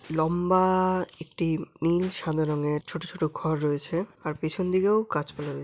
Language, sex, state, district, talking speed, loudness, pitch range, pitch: Bengali, male, West Bengal, Jalpaiguri, 150 wpm, -27 LUFS, 155-185 Hz, 160 Hz